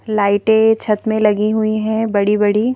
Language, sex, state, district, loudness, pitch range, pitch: Hindi, female, Madhya Pradesh, Bhopal, -15 LUFS, 210-220 Hz, 215 Hz